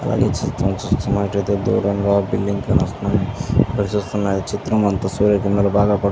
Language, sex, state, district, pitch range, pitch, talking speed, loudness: Telugu, male, Andhra Pradesh, Visakhapatnam, 100-105 Hz, 100 Hz, 155 wpm, -19 LUFS